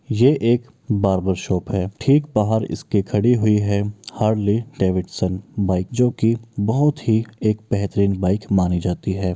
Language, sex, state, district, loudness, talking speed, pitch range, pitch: Maithili, male, Bihar, Bhagalpur, -20 LUFS, 155 wpm, 95-115 Hz, 105 Hz